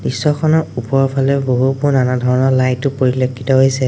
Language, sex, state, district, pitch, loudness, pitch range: Assamese, male, Assam, Sonitpur, 130 Hz, -15 LUFS, 130-135 Hz